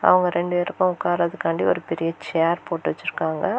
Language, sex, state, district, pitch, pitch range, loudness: Tamil, female, Tamil Nadu, Kanyakumari, 175 Hz, 165-180 Hz, -23 LUFS